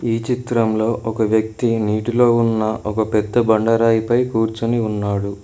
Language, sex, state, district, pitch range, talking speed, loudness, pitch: Telugu, male, Telangana, Mahabubabad, 110-115 Hz, 120 wpm, -18 LUFS, 115 Hz